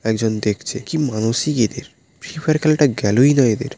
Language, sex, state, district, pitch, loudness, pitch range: Bengali, male, West Bengal, Paschim Medinipur, 125 Hz, -18 LUFS, 110-150 Hz